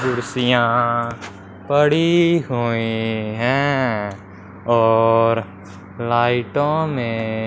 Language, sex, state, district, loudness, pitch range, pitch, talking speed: Hindi, male, Punjab, Fazilka, -18 LUFS, 110-125 Hz, 115 Hz, 55 wpm